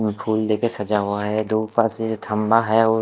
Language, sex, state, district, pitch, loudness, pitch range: Hindi, male, Odisha, Khordha, 110 Hz, -21 LUFS, 105-110 Hz